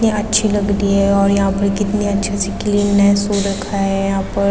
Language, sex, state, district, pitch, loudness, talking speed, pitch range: Hindi, female, Uttarakhand, Tehri Garhwal, 200 Hz, -16 LUFS, 215 wpm, 200-205 Hz